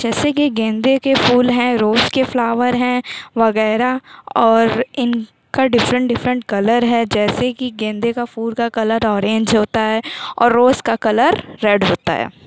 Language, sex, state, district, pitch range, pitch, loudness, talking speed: Hindi, female, Uttar Pradesh, Jalaun, 220-250 Hz, 235 Hz, -16 LUFS, 165 wpm